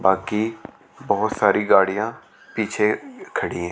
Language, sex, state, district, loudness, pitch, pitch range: Hindi, male, Chandigarh, Chandigarh, -21 LUFS, 105 Hz, 95-110 Hz